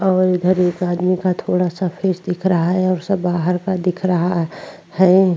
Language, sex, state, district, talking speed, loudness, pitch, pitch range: Hindi, female, Uttar Pradesh, Jyotiba Phule Nagar, 190 wpm, -18 LUFS, 180 Hz, 180-185 Hz